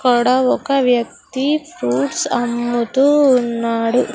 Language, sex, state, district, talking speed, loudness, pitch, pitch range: Telugu, female, Andhra Pradesh, Sri Satya Sai, 100 wpm, -16 LUFS, 245 Hz, 235-265 Hz